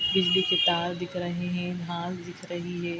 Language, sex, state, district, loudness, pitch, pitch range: Hindi, female, Bihar, Araria, -27 LUFS, 175 Hz, 175-180 Hz